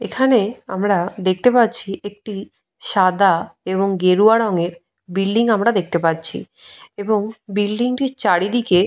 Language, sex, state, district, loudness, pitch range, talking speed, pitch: Bengali, female, Jharkhand, Jamtara, -18 LUFS, 185-225 Hz, 120 wpm, 200 Hz